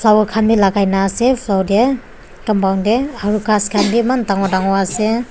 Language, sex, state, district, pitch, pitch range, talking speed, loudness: Nagamese, female, Nagaland, Dimapur, 215 Hz, 195-230 Hz, 170 wpm, -15 LUFS